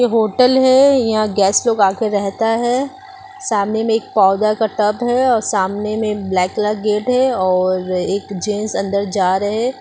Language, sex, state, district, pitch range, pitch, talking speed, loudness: Hindi, female, West Bengal, Purulia, 200-240 Hz, 215 Hz, 165 wpm, -16 LUFS